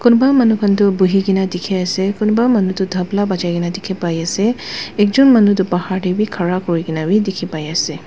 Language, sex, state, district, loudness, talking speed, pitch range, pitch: Nagamese, female, Nagaland, Dimapur, -16 LUFS, 185 wpm, 175-210 Hz, 190 Hz